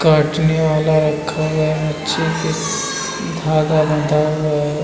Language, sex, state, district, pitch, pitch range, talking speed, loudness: Hindi, male, Uttar Pradesh, Muzaffarnagar, 155 Hz, 150-155 Hz, 100 wpm, -17 LUFS